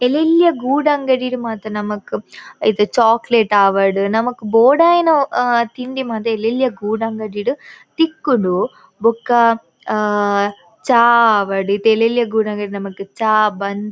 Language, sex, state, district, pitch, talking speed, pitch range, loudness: Tulu, female, Karnataka, Dakshina Kannada, 225 Hz, 110 wpm, 210-255 Hz, -16 LUFS